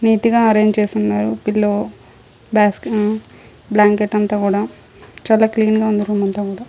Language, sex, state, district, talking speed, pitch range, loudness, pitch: Telugu, female, Andhra Pradesh, Chittoor, 145 wpm, 200-215 Hz, -16 LUFS, 210 Hz